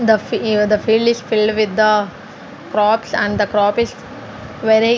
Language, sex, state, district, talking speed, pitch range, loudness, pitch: English, female, Punjab, Fazilka, 180 wpm, 210-225 Hz, -16 LUFS, 215 Hz